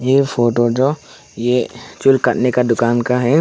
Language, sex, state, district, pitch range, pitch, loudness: Hindi, male, Arunachal Pradesh, Longding, 120-135 Hz, 125 Hz, -16 LUFS